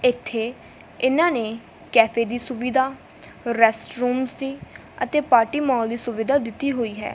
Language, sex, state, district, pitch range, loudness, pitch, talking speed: Punjabi, female, Punjab, Fazilka, 230-265 Hz, -22 LUFS, 245 Hz, 145 wpm